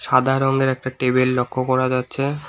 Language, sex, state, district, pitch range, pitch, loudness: Bengali, male, West Bengal, Alipurduar, 130-135 Hz, 130 Hz, -20 LUFS